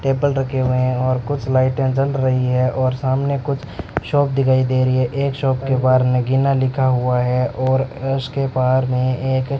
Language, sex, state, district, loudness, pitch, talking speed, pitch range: Hindi, male, Rajasthan, Bikaner, -18 LUFS, 130 Hz, 205 wpm, 130-135 Hz